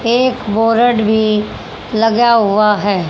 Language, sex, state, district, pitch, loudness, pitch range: Hindi, female, Haryana, Jhajjar, 220 Hz, -13 LUFS, 210-235 Hz